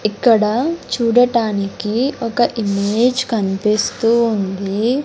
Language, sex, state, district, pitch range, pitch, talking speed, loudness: Telugu, male, Andhra Pradesh, Sri Satya Sai, 210-245 Hz, 230 Hz, 70 wpm, -17 LUFS